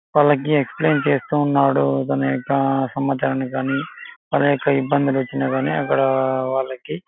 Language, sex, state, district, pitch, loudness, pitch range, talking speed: Telugu, male, Andhra Pradesh, Anantapur, 135 Hz, -20 LUFS, 130-140 Hz, 85 wpm